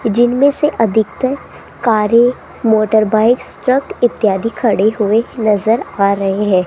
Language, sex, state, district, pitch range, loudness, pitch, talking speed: Hindi, female, Rajasthan, Jaipur, 210-240 Hz, -14 LUFS, 225 Hz, 115 wpm